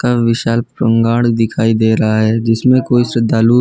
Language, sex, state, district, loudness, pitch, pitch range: Hindi, male, Gujarat, Valsad, -13 LUFS, 115 Hz, 115-120 Hz